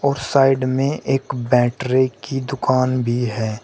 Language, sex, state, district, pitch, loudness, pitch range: Hindi, male, Uttar Pradesh, Shamli, 130 Hz, -19 LUFS, 125-135 Hz